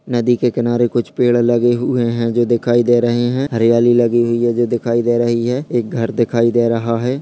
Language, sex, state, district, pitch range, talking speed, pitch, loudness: Hindi, male, Bihar, Begusarai, 115-120 Hz, 235 wpm, 120 Hz, -15 LUFS